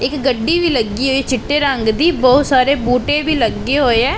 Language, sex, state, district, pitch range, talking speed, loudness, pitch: Punjabi, male, Punjab, Pathankot, 250-290 Hz, 215 wpm, -15 LUFS, 265 Hz